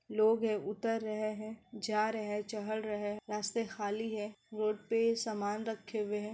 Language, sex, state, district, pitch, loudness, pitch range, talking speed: Hindi, female, Bihar, Kishanganj, 215 Hz, -36 LUFS, 210-220 Hz, 160 wpm